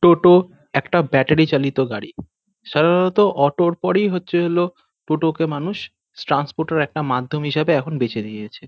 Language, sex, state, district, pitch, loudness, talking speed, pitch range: Bengali, male, West Bengal, North 24 Parganas, 160 Hz, -19 LUFS, 150 wpm, 145-180 Hz